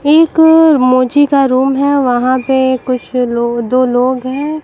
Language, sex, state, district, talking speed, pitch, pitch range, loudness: Hindi, female, Bihar, West Champaran, 155 wpm, 260 Hz, 255-285 Hz, -11 LUFS